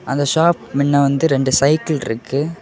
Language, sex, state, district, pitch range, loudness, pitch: Tamil, male, Tamil Nadu, Kanyakumari, 135-155 Hz, -16 LUFS, 140 Hz